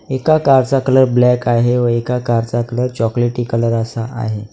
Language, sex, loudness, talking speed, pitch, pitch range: Marathi, male, -15 LUFS, 170 wpm, 120 Hz, 115-125 Hz